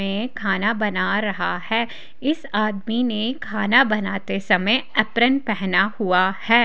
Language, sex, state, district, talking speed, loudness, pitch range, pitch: Hindi, female, Haryana, Charkhi Dadri, 135 wpm, -21 LUFS, 195-235 Hz, 215 Hz